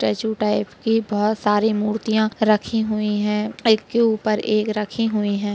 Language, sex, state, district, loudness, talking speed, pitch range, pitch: Hindi, female, Uttar Pradesh, Deoria, -20 LUFS, 175 wpm, 210-220 Hz, 215 Hz